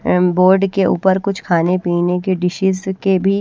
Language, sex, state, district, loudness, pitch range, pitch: Hindi, female, Haryana, Rohtak, -16 LUFS, 180-190 Hz, 185 Hz